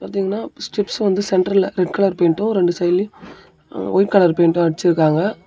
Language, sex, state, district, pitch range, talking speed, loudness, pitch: Tamil, male, Tamil Nadu, Namakkal, 175-200 Hz, 145 wpm, -17 LUFS, 190 Hz